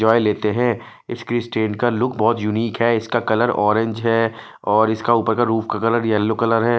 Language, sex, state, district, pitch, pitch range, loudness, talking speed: Hindi, male, Punjab, Fazilka, 115 Hz, 110-120 Hz, -19 LUFS, 210 wpm